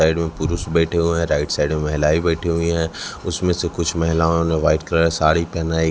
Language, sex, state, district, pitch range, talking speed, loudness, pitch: Hindi, male, Chhattisgarh, Raipur, 80-85 Hz, 225 wpm, -19 LUFS, 85 Hz